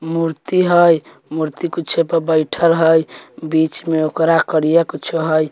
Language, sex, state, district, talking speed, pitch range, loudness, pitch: Bajjika, male, Bihar, Vaishali, 140 wpm, 155-165 Hz, -16 LUFS, 160 Hz